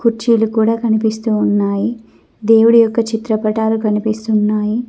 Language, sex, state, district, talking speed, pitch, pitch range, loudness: Telugu, female, Telangana, Mahabubabad, 100 wpm, 220 Hz, 215-225 Hz, -15 LUFS